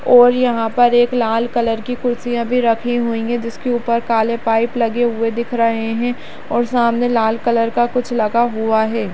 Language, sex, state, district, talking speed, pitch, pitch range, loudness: Kumaoni, female, Uttarakhand, Uttarkashi, 195 wpm, 235 Hz, 230-240 Hz, -17 LUFS